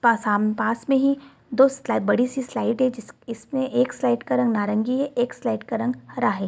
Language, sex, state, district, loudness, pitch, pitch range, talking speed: Hindi, female, Bihar, East Champaran, -23 LUFS, 245 Hz, 230-260 Hz, 215 wpm